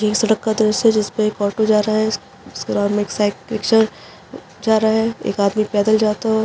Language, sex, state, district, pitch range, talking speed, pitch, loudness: Hindi, female, Chhattisgarh, Rajnandgaon, 210-220 Hz, 240 wpm, 215 Hz, -18 LUFS